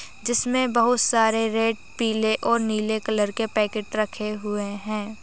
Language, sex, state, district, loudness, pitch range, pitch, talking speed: Hindi, female, Maharashtra, Nagpur, -23 LUFS, 215-230 Hz, 220 Hz, 150 wpm